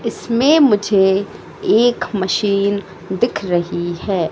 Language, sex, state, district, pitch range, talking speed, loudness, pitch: Hindi, female, Madhya Pradesh, Katni, 185-225 Hz, 95 wpm, -16 LUFS, 200 Hz